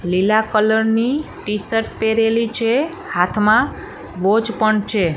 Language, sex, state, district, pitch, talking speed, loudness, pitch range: Gujarati, female, Gujarat, Gandhinagar, 220 Hz, 115 wpm, -18 LUFS, 210-230 Hz